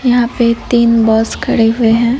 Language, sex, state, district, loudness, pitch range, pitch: Hindi, female, Odisha, Nuapada, -12 LUFS, 225-240 Hz, 235 Hz